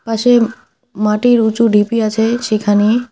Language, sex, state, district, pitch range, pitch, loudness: Bengali, female, West Bengal, Alipurduar, 215-240 Hz, 225 Hz, -13 LUFS